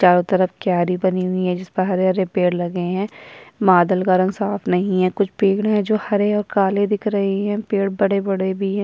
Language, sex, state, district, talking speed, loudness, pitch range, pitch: Hindi, female, Chhattisgarh, Sukma, 210 wpm, -19 LUFS, 185-205 Hz, 190 Hz